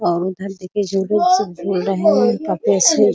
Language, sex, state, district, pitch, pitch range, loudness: Hindi, female, Bihar, Muzaffarpur, 195 Hz, 185-205 Hz, -17 LUFS